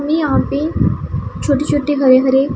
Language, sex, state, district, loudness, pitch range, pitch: Hindi, female, Punjab, Pathankot, -15 LUFS, 265-295 Hz, 285 Hz